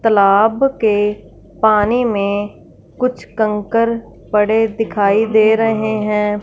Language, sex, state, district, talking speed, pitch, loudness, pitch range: Hindi, female, Punjab, Fazilka, 105 wpm, 215 Hz, -15 LUFS, 210-225 Hz